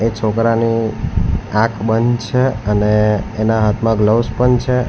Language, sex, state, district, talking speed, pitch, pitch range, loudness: Gujarati, male, Gujarat, Valsad, 135 wpm, 115 Hz, 105-115 Hz, -16 LUFS